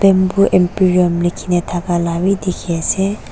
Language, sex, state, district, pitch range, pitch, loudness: Nagamese, female, Nagaland, Dimapur, 175-190 Hz, 180 Hz, -15 LUFS